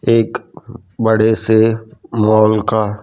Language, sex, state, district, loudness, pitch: Hindi, male, Gujarat, Gandhinagar, -14 LUFS, 110 Hz